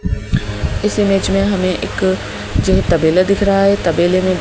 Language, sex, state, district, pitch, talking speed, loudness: Hindi, male, Madhya Pradesh, Bhopal, 170 Hz, 165 wpm, -15 LUFS